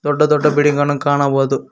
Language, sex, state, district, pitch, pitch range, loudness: Kannada, male, Karnataka, Koppal, 145 Hz, 140-150 Hz, -15 LUFS